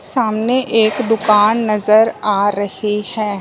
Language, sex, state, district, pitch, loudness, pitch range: Hindi, male, Punjab, Fazilka, 215 Hz, -15 LUFS, 210-225 Hz